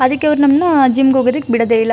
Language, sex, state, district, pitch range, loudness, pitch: Kannada, female, Karnataka, Chamarajanagar, 250-285 Hz, -13 LUFS, 265 Hz